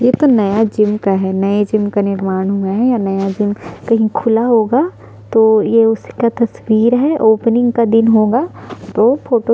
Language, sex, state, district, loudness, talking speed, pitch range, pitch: Hindi, female, Chhattisgarh, Sukma, -14 LUFS, 190 wpm, 205-235 Hz, 220 Hz